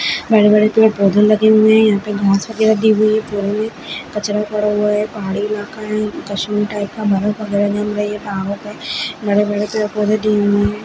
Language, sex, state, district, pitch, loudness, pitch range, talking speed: Kumaoni, female, Uttarakhand, Uttarkashi, 210 Hz, -16 LUFS, 205-215 Hz, 175 wpm